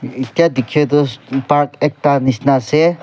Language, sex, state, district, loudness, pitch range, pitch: Nagamese, male, Nagaland, Kohima, -15 LUFS, 130-150 Hz, 145 Hz